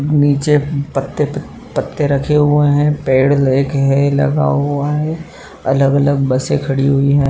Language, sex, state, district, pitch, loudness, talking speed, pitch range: Hindi, male, Uttar Pradesh, Muzaffarnagar, 140 Hz, -15 LUFS, 125 wpm, 135-145 Hz